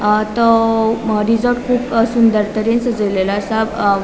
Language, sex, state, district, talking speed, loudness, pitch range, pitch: Konkani, female, Goa, North and South Goa, 150 wpm, -15 LUFS, 210-230 Hz, 225 Hz